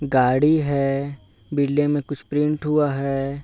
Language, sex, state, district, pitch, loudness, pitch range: Hindi, male, Chhattisgarh, Bilaspur, 140 Hz, -21 LUFS, 135-145 Hz